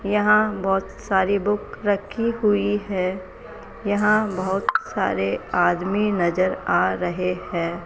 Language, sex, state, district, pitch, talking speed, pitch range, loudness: Hindi, female, Rajasthan, Jaipur, 200 Hz, 115 wpm, 185-210 Hz, -22 LUFS